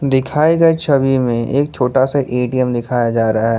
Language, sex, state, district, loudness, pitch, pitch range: Hindi, male, Jharkhand, Palamu, -15 LUFS, 130 Hz, 120-140 Hz